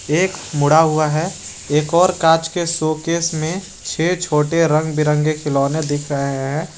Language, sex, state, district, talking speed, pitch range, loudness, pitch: Hindi, male, Jharkhand, Garhwa, 160 wpm, 150-165 Hz, -18 LUFS, 155 Hz